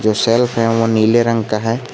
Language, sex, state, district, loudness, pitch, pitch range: Hindi, male, Jharkhand, Garhwa, -15 LUFS, 115 Hz, 110-115 Hz